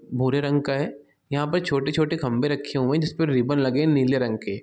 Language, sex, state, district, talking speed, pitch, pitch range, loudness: Hindi, male, Chhattisgarh, Bilaspur, 220 wpm, 140 Hz, 130-150 Hz, -23 LUFS